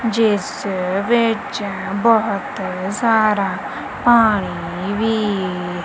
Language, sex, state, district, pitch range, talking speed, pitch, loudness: Punjabi, female, Punjab, Kapurthala, 190-225 Hz, 60 wpm, 205 Hz, -18 LUFS